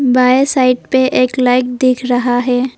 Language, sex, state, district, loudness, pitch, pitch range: Hindi, female, Assam, Kamrup Metropolitan, -13 LUFS, 255 Hz, 250-260 Hz